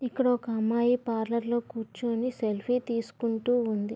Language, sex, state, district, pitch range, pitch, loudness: Telugu, female, Andhra Pradesh, Visakhapatnam, 225-245 Hz, 235 Hz, -29 LUFS